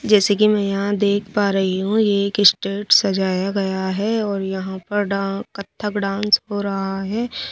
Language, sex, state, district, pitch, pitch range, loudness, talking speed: Hindi, female, Bihar, Kaimur, 200 Hz, 195-205 Hz, -19 LUFS, 190 wpm